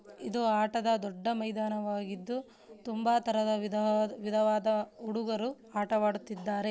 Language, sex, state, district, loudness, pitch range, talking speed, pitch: Kannada, female, Karnataka, Dharwad, -32 LUFS, 210-225 Hz, 100 wpm, 215 Hz